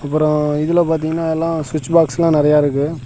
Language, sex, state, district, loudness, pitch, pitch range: Tamil, male, Tamil Nadu, Namakkal, -16 LUFS, 155 Hz, 150-165 Hz